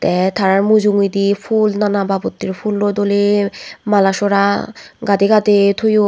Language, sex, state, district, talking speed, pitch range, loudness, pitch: Chakma, female, Tripura, West Tripura, 110 wpm, 200-210 Hz, -15 LUFS, 200 Hz